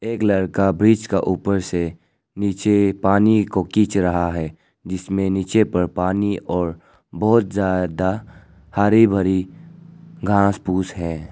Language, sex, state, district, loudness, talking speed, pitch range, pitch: Hindi, male, Arunachal Pradesh, Lower Dibang Valley, -19 LUFS, 125 wpm, 90-105 Hz, 95 Hz